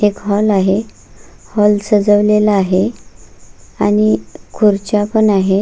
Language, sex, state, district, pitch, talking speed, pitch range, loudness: Marathi, female, Maharashtra, Solapur, 205 Hz, 105 wpm, 190-210 Hz, -14 LUFS